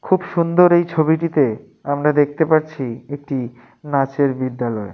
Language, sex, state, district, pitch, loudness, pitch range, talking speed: Bengali, male, West Bengal, Dakshin Dinajpur, 145 Hz, -18 LUFS, 130-160 Hz, 110 wpm